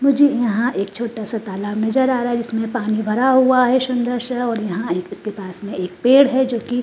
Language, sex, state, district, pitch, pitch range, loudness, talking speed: Hindi, female, Uttar Pradesh, Jalaun, 235 Hz, 215-255 Hz, -18 LUFS, 235 wpm